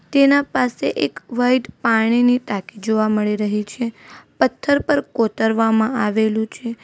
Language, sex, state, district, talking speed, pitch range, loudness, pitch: Gujarati, female, Gujarat, Valsad, 140 wpm, 220-250 Hz, -19 LUFS, 225 Hz